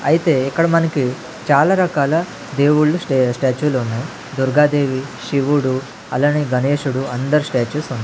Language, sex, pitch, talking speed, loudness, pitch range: Telugu, male, 140 Hz, 120 wpm, -17 LUFS, 130-150 Hz